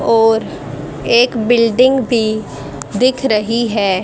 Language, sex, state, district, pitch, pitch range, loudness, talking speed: Hindi, female, Haryana, Rohtak, 225 Hz, 210-240 Hz, -14 LUFS, 105 wpm